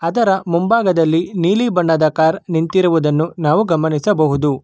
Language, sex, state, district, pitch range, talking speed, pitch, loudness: Kannada, male, Karnataka, Bangalore, 160-185 Hz, 105 wpm, 165 Hz, -15 LUFS